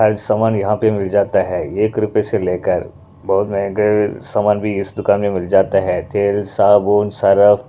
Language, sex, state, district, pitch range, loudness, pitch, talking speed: Hindi, male, Punjab, Pathankot, 100-105 Hz, -16 LUFS, 100 Hz, 195 wpm